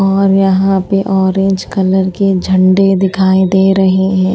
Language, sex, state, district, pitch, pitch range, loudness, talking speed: Hindi, female, Odisha, Malkangiri, 190 Hz, 190-195 Hz, -11 LUFS, 150 wpm